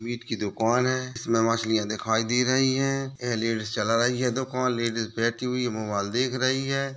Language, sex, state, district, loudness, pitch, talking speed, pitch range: Hindi, male, Chhattisgarh, Kabirdham, -26 LUFS, 120 Hz, 200 wpm, 115-130 Hz